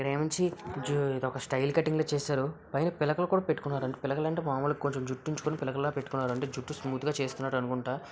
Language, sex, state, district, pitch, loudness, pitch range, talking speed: Telugu, male, Andhra Pradesh, Visakhapatnam, 140 Hz, -31 LUFS, 135-155 Hz, 190 wpm